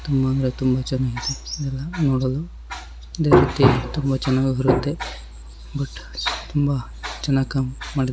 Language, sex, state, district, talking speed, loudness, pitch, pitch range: Kannada, male, Karnataka, Shimoga, 125 wpm, -22 LUFS, 135 Hz, 130-140 Hz